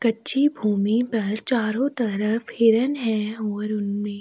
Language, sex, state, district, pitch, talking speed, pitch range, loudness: Hindi, female, Chhattisgarh, Sukma, 225 Hz, 140 wpm, 210-240 Hz, -21 LUFS